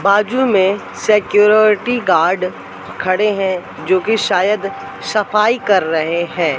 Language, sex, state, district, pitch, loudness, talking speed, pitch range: Hindi, male, Madhya Pradesh, Katni, 195 Hz, -15 LUFS, 120 wpm, 180-210 Hz